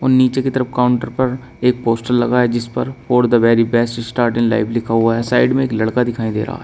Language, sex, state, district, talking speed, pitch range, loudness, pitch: Hindi, male, Uttar Pradesh, Shamli, 255 wpm, 115-125 Hz, -16 LUFS, 120 Hz